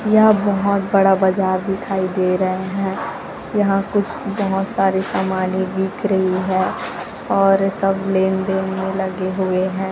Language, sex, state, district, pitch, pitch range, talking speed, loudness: Hindi, female, Chhattisgarh, Raipur, 190 Hz, 190-195 Hz, 140 wpm, -19 LUFS